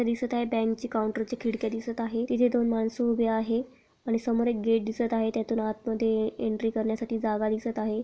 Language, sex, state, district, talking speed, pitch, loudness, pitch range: Marathi, female, Maharashtra, Pune, 210 wpm, 225 Hz, -28 LUFS, 220-235 Hz